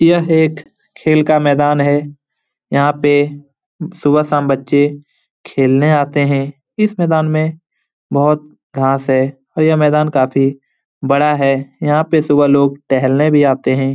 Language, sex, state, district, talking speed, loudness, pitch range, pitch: Hindi, male, Bihar, Lakhisarai, 140 wpm, -14 LUFS, 140-155 Hz, 145 Hz